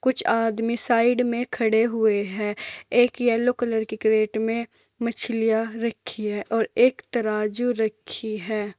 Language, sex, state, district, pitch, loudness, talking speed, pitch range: Hindi, female, Uttar Pradesh, Saharanpur, 225 Hz, -22 LUFS, 145 wpm, 215-235 Hz